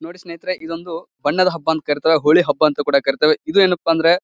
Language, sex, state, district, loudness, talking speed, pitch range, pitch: Kannada, male, Karnataka, Bijapur, -17 LUFS, 210 wpm, 155-180 Hz, 165 Hz